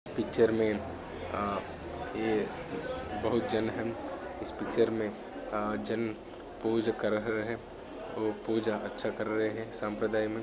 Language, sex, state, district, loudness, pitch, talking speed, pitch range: Hindi, male, Maharashtra, Solapur, -33 LUFS, 110 Hz, 120 wpm, 105-110 Hz